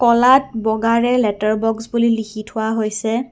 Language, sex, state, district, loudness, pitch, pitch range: Assamese, female, Assam, Kamrup Metropolitan, -17 LUFS, 225 Hz, 220-235 Hz